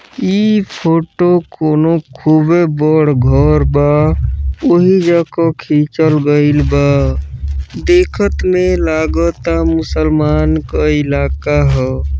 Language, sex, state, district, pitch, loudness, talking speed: Bhojpuri, female, Uttar Pradesh, Deoria, 150 Hz, -13 LUFS, 110 wpm